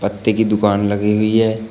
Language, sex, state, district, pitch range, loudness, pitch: Hindi, male, Uttar Pradesh, Shamli, 105-110 Hz, -16 LUFS, 105 Hz